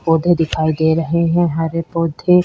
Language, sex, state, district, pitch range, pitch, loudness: Hindi, female, Chhattisgarh, Sukma, 160-170 Hz, 165 Hz, -16 LUFS